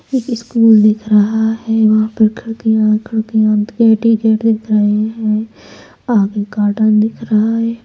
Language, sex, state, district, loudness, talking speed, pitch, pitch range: Hindi, female, Bihar, Saharsa, -13 LUFS, 155 wpm, 220 Hz, 215-225 Hz